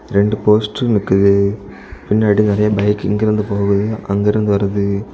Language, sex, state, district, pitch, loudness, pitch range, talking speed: Tamil, male, Tamil Nadu, Kanyakumari, 105 Hz, -15 LUFS, 100-105 Hz, 115 wpm